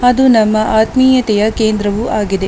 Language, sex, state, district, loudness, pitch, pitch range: Kannada, female, Karnataka, Dakshina Kannada, -12 LUFS, 220 Hz, 210-245 Hz